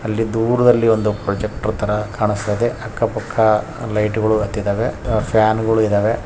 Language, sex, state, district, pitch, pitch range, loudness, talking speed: Kannada, male, Karnataka, Raichur, 110 Hz, 105-115 Hz, -18 LUFS, 125 wpm